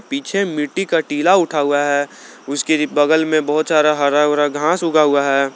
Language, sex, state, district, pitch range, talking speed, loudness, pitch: Hindi, male, Jharkhand, Garhwa, 145-165 Hz, 205 wpm, -16 LUFS, 150 Hz